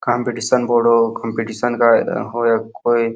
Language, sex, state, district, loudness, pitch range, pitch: Hindi, male, Uttar Pradesh, Hamirpur, -17 LUFS, 115-120 Hz, 115 Hz